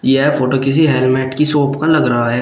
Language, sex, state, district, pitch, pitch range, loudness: Hindi, male, Uttar Pradesh, Shamli, 135 Hz, 130-150 Hz, -13 LUFS